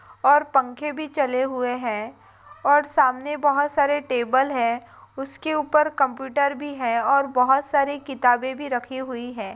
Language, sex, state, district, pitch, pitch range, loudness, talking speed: Hindi, female, Rajasthan, Nagaur, 270 Hz, 250-290 Hz, -22 LUFS, 155 wpm